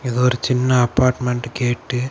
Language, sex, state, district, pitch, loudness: Tamil, male, Tamil Nadu, Kanyakumari, 125 Hz, -19 LUFS